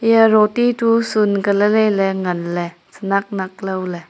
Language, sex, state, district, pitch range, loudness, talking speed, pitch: Wancho, female, Arunachal Pradesh, Longding, 185-220 Hz, -17 LUFS, 115 wpm, 200 Hz